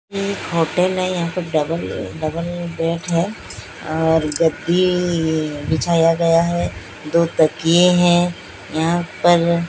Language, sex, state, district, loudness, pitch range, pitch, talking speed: Hindi, female, Odisha, Sambalpur, -18 LUFS, 160-175 Hz, 170 Hz, 120 wpm